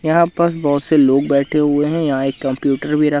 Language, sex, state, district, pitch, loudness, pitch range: Hindi, male, Madhya Pradesh, Katni, 145 Hz, -16 LUFS, 140-155 Hz